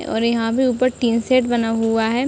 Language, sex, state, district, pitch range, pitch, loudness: Hindi, female, Uttar Pradesh, Ghazipur, 225-255 Hz, 235 Hz, -18 LUFS